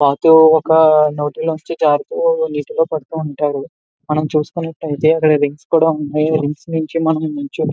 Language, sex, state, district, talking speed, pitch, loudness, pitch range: Telugu, male, Andhra Pradesh, Visakhapatnam, 100 wpm, 155 Hz, -15 LUFS, 150-160 Hz